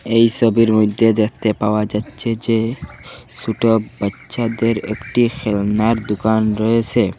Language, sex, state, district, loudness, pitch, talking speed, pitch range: Bengali, male, Assam, Hailakandi, -17 LUFS, 110 Hz, 110 wpm, 105-115 Hz